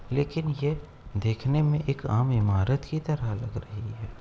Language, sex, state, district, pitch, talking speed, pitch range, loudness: Hindi, male, Uttar Pradesh, Etah, 125 Hz, 170 wpm, 110-145 Hz, -28 LUFS